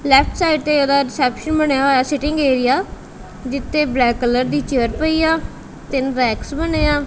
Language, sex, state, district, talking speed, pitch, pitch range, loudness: Punjabi, female, Punjab, Kapurthala, 170 wpm, 275 Hz, 255-300 Hz, -17 LUFS